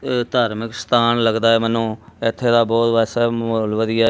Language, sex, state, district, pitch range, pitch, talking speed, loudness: Punjabi, male, Punjab, Kapurthala, 115-120 Hz, 115 Hz, 160 wpm, -18 LUFS